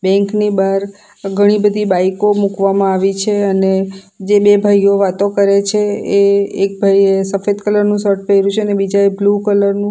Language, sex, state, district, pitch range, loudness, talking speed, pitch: Gujarati, female, Gujarat, Valsad, 195-205 Hz, -13 LUFS, 185 wpm, 200 Hz